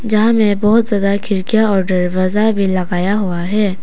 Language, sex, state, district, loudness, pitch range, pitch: Hindi, female, Arunachal Pradesh, Papum Pare, -15 LUFS, 185-215 Hz, 200 Hz